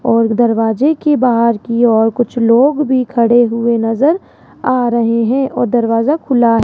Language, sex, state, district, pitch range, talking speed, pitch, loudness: Hindi, female, Rajasthan, Jaipur, 230-255 Hz, 170 wpm, 240 Hz, -13 LUFS